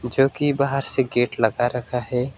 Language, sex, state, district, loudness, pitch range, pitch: Hindi, male, West Bengal, Alipurduar, -21 LUFS, 120-140 Hz, 125 Hz